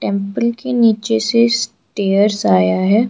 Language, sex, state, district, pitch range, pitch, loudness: Hindi, female, Arunachal Pradesh, Lower Dibang Valley, 200-235 Hz, 220 Hz, -15 LUFS